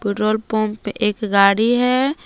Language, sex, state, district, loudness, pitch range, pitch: Hindi, female, Jharkhand, Palamu, -17 LUFS, 210-230 Hz, 215 Hz